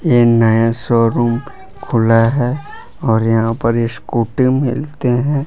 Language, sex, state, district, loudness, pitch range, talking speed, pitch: Hindi, male, Jharkhand, Palamu, -15 LUFS, 115-130 Hz, 120 wpm, 115 Hz